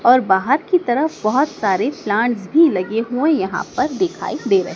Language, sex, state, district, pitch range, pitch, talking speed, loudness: Hindi, female, Madhya Pradesh, Dhar, 215-315 Hz, 255 Hz, 190 wpm, -18 LUFS